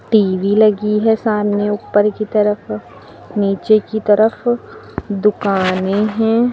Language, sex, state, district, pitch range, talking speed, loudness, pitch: Hindi, female, Uttar Pradesh, Lucknow, 200-220 Hz, 110 wpm, -16 LUFS, 210 Hz